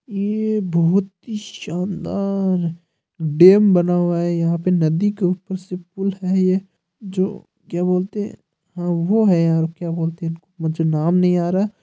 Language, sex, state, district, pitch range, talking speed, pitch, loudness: Hindi, male, Rajasthan, Nagaur, 170-195 Hz, 165 wpm, 180 Hz, -19 LUFS